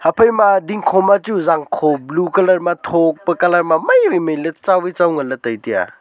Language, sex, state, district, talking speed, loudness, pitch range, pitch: Wancho, male, Arunachal Pradesh, Longding, 250 wpm, -15 LUFS, 160-195 Hz, 175 Hz